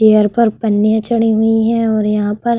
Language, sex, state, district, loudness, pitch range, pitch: Hindi, female, Uttar Pradesh, Budaun, -14 LUFS, 215-230 Hz, 220 Hz